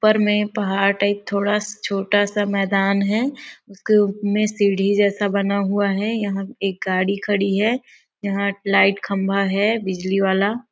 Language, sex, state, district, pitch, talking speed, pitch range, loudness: Hindi, female, Chhattisgarh, Sarguja, 200 Hz, 155 wpm, 195-210 Hz, -20 LUFS